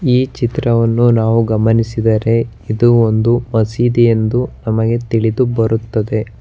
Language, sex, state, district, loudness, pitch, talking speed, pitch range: Kannada, male, Karnataka, Bangalore, -14 LUFS, 115 Hz, 95 wpm, 110-120 Hz